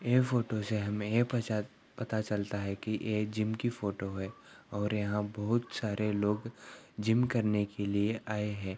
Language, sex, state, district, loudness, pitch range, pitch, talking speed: Hindi, male, Andhra Pradesh, Anantapur, -33 LUFS, 105-110 Hz, 105 Hz, 175 wpm